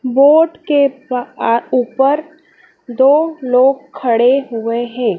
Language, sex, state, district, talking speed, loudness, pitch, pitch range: Hindi, female, Madhya Pradesh, Dhar, 115 wpm, -14 LUFS, 265 Hz, 245-285 Hz